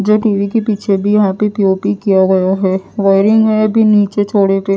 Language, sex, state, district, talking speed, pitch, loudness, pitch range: Hindi, female, Odisha, Nuapada, 215 wpm, 200 Hz, -12 LUFS, 195-215 Hz